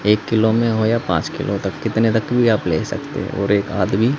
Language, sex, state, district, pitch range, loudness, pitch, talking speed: Hindi, male, Haryana, Jhajjar, 105-115 Hz, -19 LUFS, 110 Hz, 255 wpm